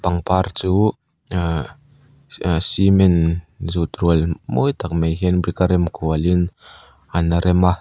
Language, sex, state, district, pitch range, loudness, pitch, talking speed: Mizo, male, Mizoram, Aizawl, 85-95 Hz, -19 LUFS, 90 Hz, 130 wpm